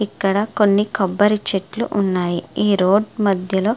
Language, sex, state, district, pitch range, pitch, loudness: Telugu, female, Andhra Pradesh, Srikakulam, 190-210 Hz, 200 Hz, -18 LUFS